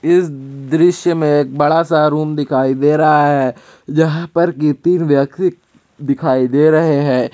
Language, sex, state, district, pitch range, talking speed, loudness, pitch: Hindi, male, Jharkhand, Ranchi, 140-165 Hz, 165 wpm, -14 LUFS, 150 Hz